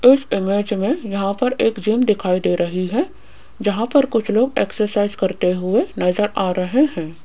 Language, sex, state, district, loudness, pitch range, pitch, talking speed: Hindi, female, Rajasthan, Jaipur, -19 LUFS, 185-230 Hz, 205 Hz, 180 wpm